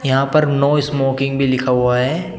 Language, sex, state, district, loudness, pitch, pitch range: Hindi, male, Uttar Pradesh, Shamli, -16 LUFS, 135 Hz, 130-145 Hz